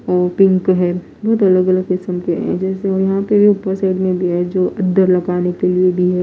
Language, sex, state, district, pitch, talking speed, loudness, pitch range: Hindi, female, Odisha, Nuapada, 185 Hz, 220 wpm, -15 LUFS, 180-190 Hz